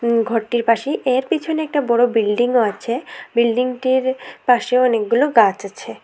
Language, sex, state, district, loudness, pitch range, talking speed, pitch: Bengali, female, Tripura, West Tripura, -18 LUFS, 230-260 Hz, 160 wpm, 245 Hz